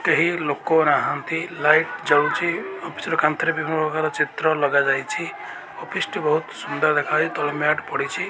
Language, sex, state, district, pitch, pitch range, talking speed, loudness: Odia, male, Odisha, Malkangiri, 155 Hz, 145-160 Hz, 145 wpm, -21 LUFS